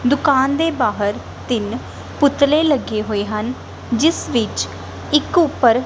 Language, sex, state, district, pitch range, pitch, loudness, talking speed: Punjabi, female, Punjab, Kapurthala, 225-290 Hz, 255 Hz, -18 LUFS, 125 wpm